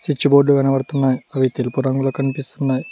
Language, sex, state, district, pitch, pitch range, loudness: Telugu, male, Telangana, Mahabubabad, 135 Hz, 130-140 Hz, -18 LUFS